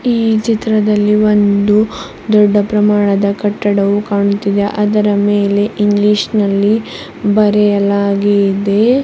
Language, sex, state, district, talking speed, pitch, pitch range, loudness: Kannada, female, Karnataka, Bidar, 80 wpm, 205 Hz, 200-210 Hz, -12 LUFS